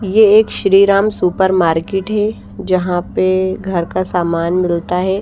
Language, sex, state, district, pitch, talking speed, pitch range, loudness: Hindi, female, Bihar, Patna, 185 Hz, 150 wpm, 180-195 Hz, -14 LUFS